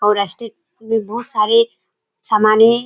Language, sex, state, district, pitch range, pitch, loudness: Hindi, female, Bihar, Kishanganj, 215-245 Hz, 225 Hz, -16 LUFS